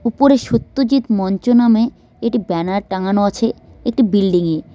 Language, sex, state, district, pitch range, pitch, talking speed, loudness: Bengali, female, West Bengal, Cooch Behar, 195-245 Hz, 225 Hz, 125 wpm, -16 LUFS